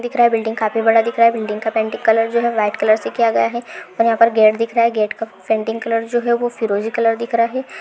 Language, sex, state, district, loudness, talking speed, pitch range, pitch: Hindi, female, Rajasthan, Churu, -17 LUFS, 300 wpm, 220-235 Hz, 225 Hz